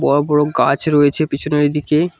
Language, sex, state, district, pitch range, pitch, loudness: Bengali, male, West Bengal, Cooch Behar, 145-155 Hz, 150 Hz, -16 LUFS